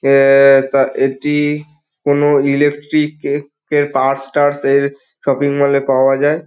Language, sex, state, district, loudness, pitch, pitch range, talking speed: Bengali, male, West Bengal, Dakshin Dinajpur, -14 LUFS, 140 Hz, 135-145 Hz, 130 wpm